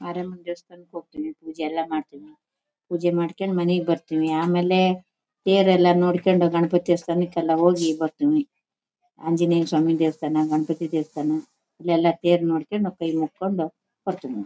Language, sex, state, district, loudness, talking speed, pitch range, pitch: Kannada, female, Karnataka, Shimoga, -22 LUFS, 120 wpm, 160-185 Hz, 175 Hz